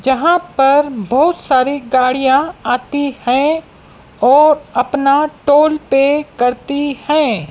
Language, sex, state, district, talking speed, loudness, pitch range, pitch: Hindi, female, Madhya Pradesh, Dhar, 105 wpm, -14 LUFS, 260-300 Hz, 280 Hz